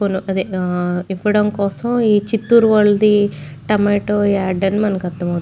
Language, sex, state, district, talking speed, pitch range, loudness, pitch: Telugu, female, Andhra Pradesh, Chittoor, 135 wpm, 185-210 Hz, -16 LUFS, 200 Hz